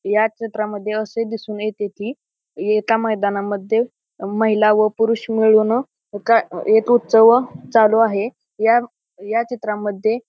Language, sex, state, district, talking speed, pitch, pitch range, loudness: Marathi, male, Maharashtra, Pune, 130 wpm, 220 Hz, 210-230 Hz, -18 LUFS